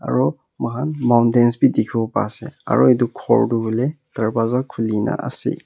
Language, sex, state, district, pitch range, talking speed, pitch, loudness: Nagamese, male, Nagaland, Kohima, 115-125 Hz, 170 wpm, 120 Hz, -19 LUFS